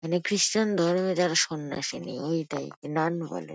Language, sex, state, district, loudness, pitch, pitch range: Bengali, female, West Bengal, Kolkata, -27 LUFS, 165 Hz, 145-180 Hz